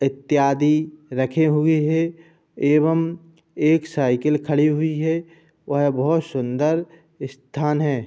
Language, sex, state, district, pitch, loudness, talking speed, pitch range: Hindi, male, Uttar Pradesh, Budaun, 155 Hz, -20 LUFS, 125 wpm, 145-160 Hz